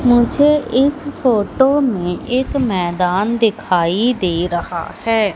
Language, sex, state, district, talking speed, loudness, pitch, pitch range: Hindi, female, Madhya Pradesh, Katni, 110 wpm, -16 LUFS, 230 Hz, 180-265 Hz